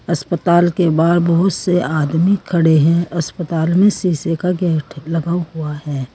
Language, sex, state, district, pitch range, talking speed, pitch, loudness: Hindi, female, Uttar Pradesh, Saharanpur, 160-175 Hz, 155 wpm, 170 Hz, -16 LUFS